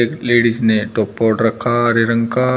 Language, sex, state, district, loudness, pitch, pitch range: Hindi, male, Uttar Pradesh, Shamli, -15 LUFS, 115 Hz, 115-120 Hz